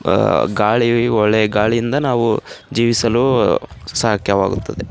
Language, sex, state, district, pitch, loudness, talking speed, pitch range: Kannada, male, Karnataka, Raichur, 115 Hz, -16 LUFS, 85 wpm, 105-120 Hz